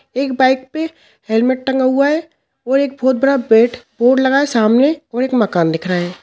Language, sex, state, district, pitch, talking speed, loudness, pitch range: Hindi, male, Bihar, Sitamarhi, 260 Hz, 210 wpm, -15 LUFS, 230-275 Hz